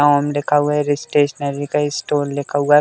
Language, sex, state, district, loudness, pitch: Hindi, male, Uttar Pradesh, Deoria, -18 LUFS, 145 Hz